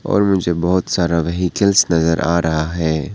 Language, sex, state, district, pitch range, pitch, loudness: Hindi, male, Arunachal Pradesh, Papum Pare, 80-90 Hz, 85 Hz, -16 LUFS